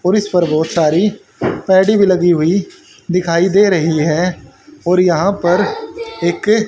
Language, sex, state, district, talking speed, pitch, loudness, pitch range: Hindi, male, Haryana, Jhajjar, 135 wpm, 180 Hz, -14 LUFS, 170-205 Hz